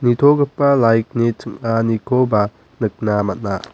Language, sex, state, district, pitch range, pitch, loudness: Garo, male, Meghalaya, West Garo Hills, 110-125 Hz, 115 Hz, -17 LUFS